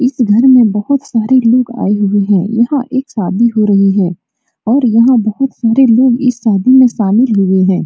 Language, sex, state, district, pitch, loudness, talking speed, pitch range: Hindi, female, Bihar, Supaul, 235 Hz, -11 LUFS, 205 wpm, 205-255 Hz